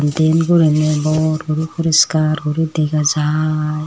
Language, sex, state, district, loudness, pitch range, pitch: Chakma, female, Tripura, Unakoti, -16 LUFS, 155-160 Hz, 155 Hz